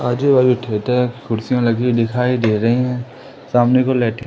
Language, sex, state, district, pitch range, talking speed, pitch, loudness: Hindi, male, Madhya Pradesh, Umaria, 115-125 Hz, 170 wpm, 125 Hz, -17 LUFS